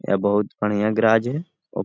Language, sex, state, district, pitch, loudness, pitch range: Hindi, male, Bihar, Lakhisarai, 105 Hz, -21 LUFS, 105-115 Hz